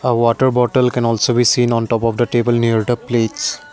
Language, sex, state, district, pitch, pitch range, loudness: English, male, Assam, Kamrup Metropolitan, 120 Hz, 115-125 Hz, -16 LUFS